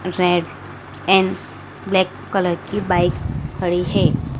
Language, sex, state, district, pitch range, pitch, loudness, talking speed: Hindi, female, Madhya Pradesh, Dhar, 145-190 Hz, 180 Hz, -19 LUFS, 110 wpm